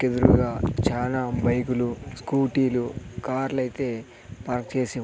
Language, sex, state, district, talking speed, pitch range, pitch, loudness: Telugu, male, Andhra Pradesh, Sri Satya Sai, 95 wpm, 120-130 Hz, 125 Hz, -25 LUFS